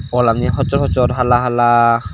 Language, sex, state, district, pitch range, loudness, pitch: Chakma, male, Tripura, Dhalai, 120-125 Hz, -14 LUFS, 125 Hz